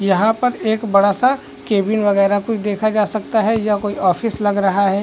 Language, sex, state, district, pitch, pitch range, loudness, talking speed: Hindi, male, Chhattisgarh, Rajnandgaon, 210 Hz, 200-220 Hz, -17 LUFS, 215 wpm